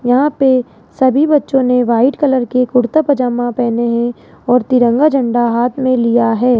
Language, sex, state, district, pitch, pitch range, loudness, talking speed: Hindi, female, Rajasthan, Jaipur, 250 Hz, 240-265 Hz, -13 LUFS, 175 wpm